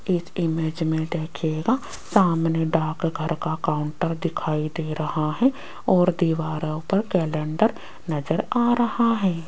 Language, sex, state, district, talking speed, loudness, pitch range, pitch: Hindi, female, Rajasthan, Jaipur, 125 wpm, -24 LUFS, 155-185 Hz, 165 Hz